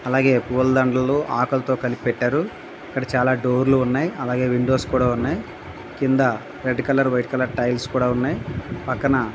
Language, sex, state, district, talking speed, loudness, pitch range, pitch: Telugu, male, Andhra Pradesh, Visakhapatnam, 155 wpm, -21 LUFS, 125-130 Hz, 130 Hz